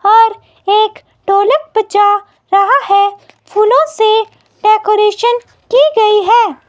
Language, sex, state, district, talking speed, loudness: Hindi, female, Himachal Pradesh, Shimla, 110 wpm, -11 LUFS